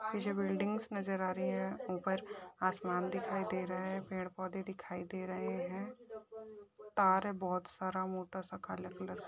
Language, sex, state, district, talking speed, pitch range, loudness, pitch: Hindi, female, Uttar Pradesh, Etah, 175 wpm, 185-205 Hz, -38 LUFS, 190 Hz